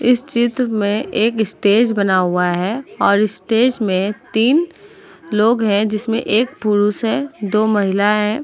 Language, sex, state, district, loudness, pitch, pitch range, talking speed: Hindi, female, Uttar Pradesh, Muzaffarnagar, -16 LUFS, 215 Hz, 205-240 Hz, 150 wpm